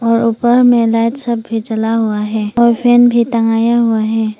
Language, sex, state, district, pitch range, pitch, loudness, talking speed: Hindi, female, Arunachal Pradesh, Papum Pare, 225-235 Hz, 230 Hz, -13 LUFS, 205 wpm